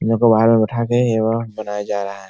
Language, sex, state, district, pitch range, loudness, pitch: Hindi, male, Bihar, Supaul, 105-115 Hz, -17 LUFS, 110 Hz